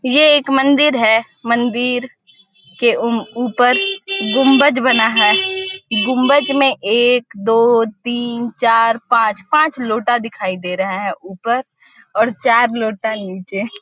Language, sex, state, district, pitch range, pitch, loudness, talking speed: Hindi, female, Chhattisgarh, Balrampur, 220-255 Hz, 235 Hz, -15 LUFS, 125 wpm